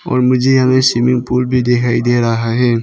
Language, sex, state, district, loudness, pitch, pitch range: Hindi, male, Arunachal Pradesh, Papum Pare, -13 LUFS, 125 Hz, 120-130 Hz